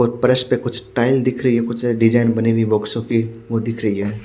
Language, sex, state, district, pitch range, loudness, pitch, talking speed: Hindi, male, Chhattisgarh, Raipur, 115-120 Hz, -18 LUFS, 115 Hz, 255 wpm